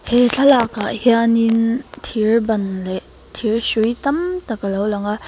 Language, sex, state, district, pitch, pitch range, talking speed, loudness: Mizo, female, Mizoram, Aizawl, 230 Hz, 210-240 Hz, 170 wpm, -18 LUFS